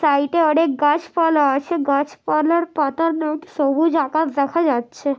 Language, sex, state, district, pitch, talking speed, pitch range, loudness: Bengali, female, West Bengal, North 24 Parganas, 305 Hz, 140 wpm, 285-325 Hz, -19 LUFS